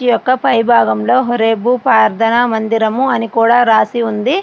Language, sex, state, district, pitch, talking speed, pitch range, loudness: Telugu, female, Andhra Pradesh, Srikakulam, 230 Hz, 135 wpm, 220-245 Hz, -12 LUFS